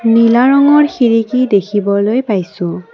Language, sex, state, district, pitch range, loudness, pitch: Assamese, female, Assam, Kamrup Metropolitan, 200-255 Hz, -12 LUFS, 230 Hz